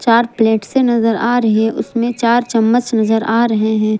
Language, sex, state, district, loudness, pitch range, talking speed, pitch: Hindi, female, Jharkhand, Palamu, -14 LUFS, 220-240 Hz, 210 wpm, 230 Hz